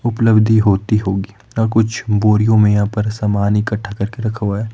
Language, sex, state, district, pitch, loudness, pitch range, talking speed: Hindi, male, Himachal Pradesh, Shimla, 105 Hz, -16 LUFS, 105-110 Hz, 190 wpm